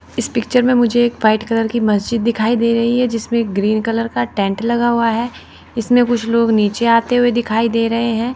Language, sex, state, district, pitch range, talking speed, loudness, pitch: Hindi, female, Chandigarh, Chandigarh, 225-240 Hz, 220 wpm, -16 LUFS, 230 Hz